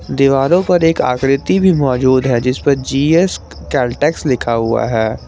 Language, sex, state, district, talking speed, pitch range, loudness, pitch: Hindi, male, Jharkhand, Garhwa, 160 wpm, 125-160 Hz, -14 LUFS, 135 Hz